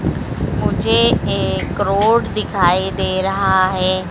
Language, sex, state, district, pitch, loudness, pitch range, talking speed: Hindi, female, Madhya Pradesh, Dhar, 190 Hz, -17 LUFS, 185-200 Hz, 100 wpm